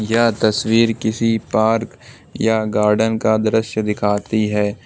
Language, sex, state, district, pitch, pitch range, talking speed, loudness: Hindi, male, Uttar Pradesh, Lucknow, 110 Hz, 105-110 Hz, 125 wpm, -17 LUFS